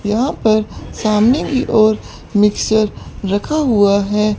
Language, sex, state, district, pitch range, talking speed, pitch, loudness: Hindi, female, Chandigarh, Chandigarh, 205-225 Hz, 125 wpm, 215 Hz, -15 LUFS